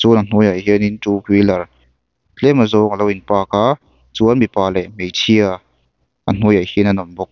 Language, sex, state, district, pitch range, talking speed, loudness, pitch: Mizo, male, Mizoram, Aizawl, 90-105 Hz, 190 wpm, -15 LUFS, 100 Hz